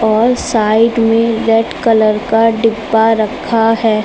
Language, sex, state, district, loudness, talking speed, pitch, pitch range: Hindi, female, Uttar Pradesh, Lucknow, -12 LUFS, 135 wpm, 225 Hz, 220-230 Hz